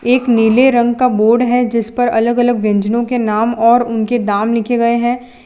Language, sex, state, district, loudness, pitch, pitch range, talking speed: Hindi, female, Gujarat, Valsad, -13 LUFS, 235 Hz, 225-245 Hz, 210 wpm